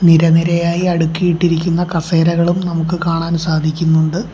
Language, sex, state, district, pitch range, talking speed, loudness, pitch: Malayalam, male, Kerala, Kollam, 165-175 Hz, 110 wpm, -15 LUFS, 170 Hz